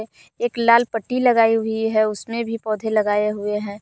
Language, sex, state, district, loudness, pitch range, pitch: Hindi, female, Jharkhand, Palamu, -20 LUFS, 210-230 Hz, 220 Hz